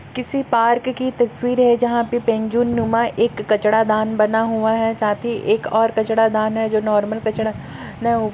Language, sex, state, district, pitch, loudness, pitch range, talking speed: Hindi, female, Chhattisgarh, Kabirdham, 225 Hz, -18 LUFS, 220-240 Hz, 210 wpm